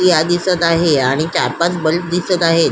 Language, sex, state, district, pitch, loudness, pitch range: Marathi, female, Maharashtra, Solapur, 170 Hz, -15 LUFS, 155-175 Hz